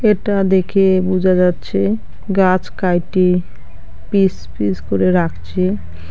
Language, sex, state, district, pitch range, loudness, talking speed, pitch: Bengali, female, West Bengal, Alipurduar, 180-195 Hz, -16 LUFS, 100 wpm, 185 Hz